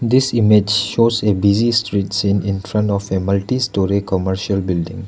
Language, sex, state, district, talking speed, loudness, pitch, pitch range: English, male, Arunachal Pradesh, Lower Dibang Valley, 175 wpm, -17 LUFS, 100 Hz, 95-115 Hz